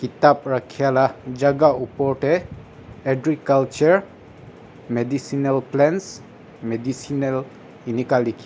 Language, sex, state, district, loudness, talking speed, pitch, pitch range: Nagamese, male, Nagaland, Dimapur, -21 LUFS, 100 wpm, 135 Hz, 125-140 Hz